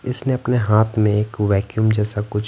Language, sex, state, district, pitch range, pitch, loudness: Hindi, male, Bihar, Patna, 105-115 Hz, 110 Hz, -19 LUFS